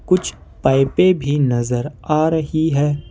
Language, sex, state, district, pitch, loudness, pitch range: Hindi, male, Jharkhand, Ranchi, 145 Hz, -17 LUFS, 125-155 Hz